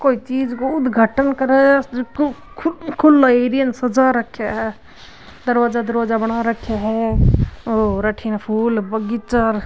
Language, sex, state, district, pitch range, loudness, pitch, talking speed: Marwari, female, Rajasthan, Nagaur, 225-265 Hz, -17 LUFS, 240 Hz, 135 wpm